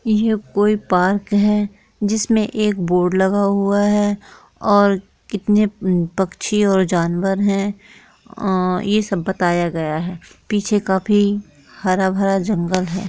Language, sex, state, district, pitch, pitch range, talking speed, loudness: Hindi, female, Bihar, Jahanabad, 200 Hz, 185-210 Hz, 130 wpm, -18 LUFS